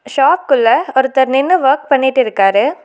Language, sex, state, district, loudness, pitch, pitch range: Tamil, female, Tamil Nadu, Nilgiris, -12 LUFS, 270 Hz, 260-305 Hz